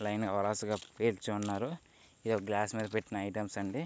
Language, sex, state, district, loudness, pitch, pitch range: Telugu, male, Andhra Pradesh, Guntur, -35 LUFS, 105 Hz, 100-110 Hz